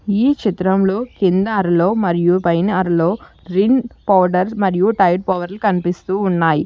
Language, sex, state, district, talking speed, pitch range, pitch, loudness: Telugu, female, Telangana, Hyderabad, 125 wpm, 180-205 Hz, 190 Hz, -16 LUFS